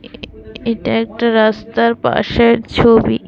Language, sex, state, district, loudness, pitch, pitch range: Bengali, female, Tripura, West Tripura, -14 LUFS, 230 Hz, 220-235 Hz